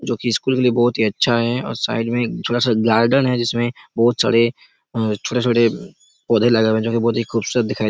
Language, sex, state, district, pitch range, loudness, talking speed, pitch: Hindi, male, Chhattisgarh, Raigarh, 115-120 Hz, -18 LUFS, 220 wpm, 115 Hz